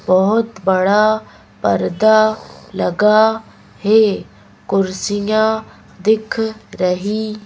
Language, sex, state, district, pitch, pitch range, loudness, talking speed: Hindi, female, Madhya Pradesh, Bhopal, 210 Hz, 190-220 Hz, -16 LUFS, 65 wpm